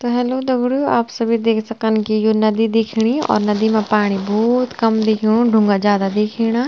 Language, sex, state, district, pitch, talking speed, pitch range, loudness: Garhwali, female, Uttarakhand, Tehri Garhwal, 225 Hz, 190 wpm, 215-235 Hz, -17 LUFS